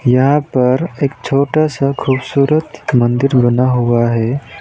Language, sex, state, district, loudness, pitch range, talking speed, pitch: Hindi, male, West Bengal, Alipurduar, -14 LUFS, 125-145 Hz, 130 wpm, 135 Hz